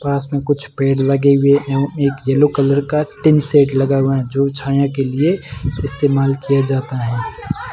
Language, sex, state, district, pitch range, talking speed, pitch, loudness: Hindi, male, Rajasthan, Barmer, 135-140 Hz, 180 wpm, 140 Hz, -16 LUFS